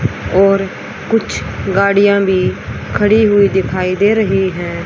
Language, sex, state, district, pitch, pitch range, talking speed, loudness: Hindi, female, Haryana, Rohtak, 195 Hz, 185-205 Hz, 125 wpm, -13 LUFS